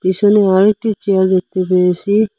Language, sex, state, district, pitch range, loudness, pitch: Bengali, male, Assam, Hailakandi, 185-210 Hz, -13 LUFS, 195 Hz